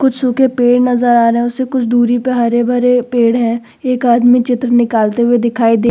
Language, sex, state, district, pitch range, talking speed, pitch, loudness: Hindi, female, Uttar Pradesh, Muzaffarnagar, 235-250 Hz, 235 wpm, 240 Hz, -12 LUFS